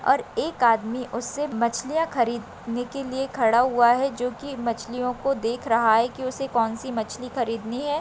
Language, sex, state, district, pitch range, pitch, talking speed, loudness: Hindi, female, Maharashtra, Solapur, 230-265 Hz, 245 Hz, 185 wpm, -24 LUFS